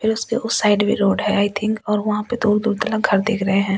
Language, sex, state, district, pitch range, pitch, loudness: Hindi, female, Delhi, New Delhi, 205-220 Hz, 210 Hz, -19 LUFS